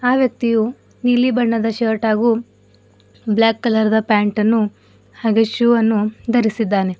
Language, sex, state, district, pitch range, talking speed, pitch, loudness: Kannada, female, Karnataka, Bidar, 215-235 Hz, 120 wpm, 225 Hz, -17 LUFS